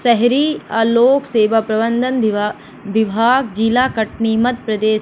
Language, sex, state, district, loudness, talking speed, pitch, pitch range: Hindi, female, Madhya Pradesh, Katni, -16 LUFS, 130 wpm, 225 Hz, 220-245 Hz